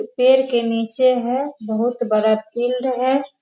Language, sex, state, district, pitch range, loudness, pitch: Hindi, female, Bihar, Sitamarhi, 230-260 Hz, -19 LUFS, 250 Hz